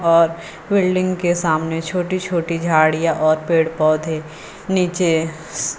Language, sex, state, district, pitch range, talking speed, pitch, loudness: Hindi, female, Uttar Pradesh, Lucknow, 160-175 Hz, 115 wpm, 165 Hz, -18 LUFS